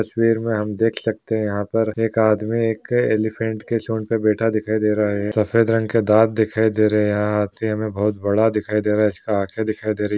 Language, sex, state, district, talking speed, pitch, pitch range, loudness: Hindi, male, Chhattisgarh, Jashpur, 240 wpm, 110 Hz, 105-110 Hz, -20 LUFS